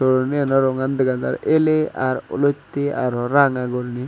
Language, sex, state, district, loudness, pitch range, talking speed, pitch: Chakma, male, Tripura, Unakoti, -20 LUFS, 130-145 Hz, 160 wpm, 135 Hz